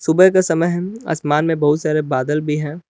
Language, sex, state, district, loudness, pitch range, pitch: Hindi, male, Jharkhand, Palamu, -17 LUFS, 150-170 Hz, 155 Hz